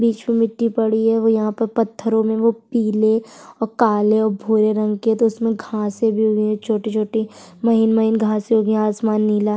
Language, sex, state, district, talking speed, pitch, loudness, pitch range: Hindi, female, Chhattisgarh, Sukma, 200 wpm, 220 Hz, -18 LUFS, 215-225 Hz